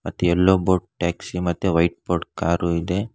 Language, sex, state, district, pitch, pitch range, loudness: Kannada, male, Karnataka, Bangalore, 90 Hz, 85-95 Hz, -21 LUFS